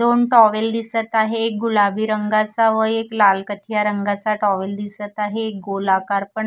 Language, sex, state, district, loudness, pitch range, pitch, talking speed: Marathi, female, Maharashtra, Gondia, -19 LUFS, 205-225 Hz, 215 Hz, 165 wpm